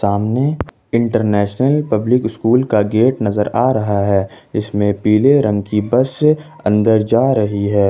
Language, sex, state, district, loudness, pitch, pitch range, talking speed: Hindi, male, Jharkhand, Ranchi, -15 LUFS, 110 Hz, 105-125 Hz, 145 wpm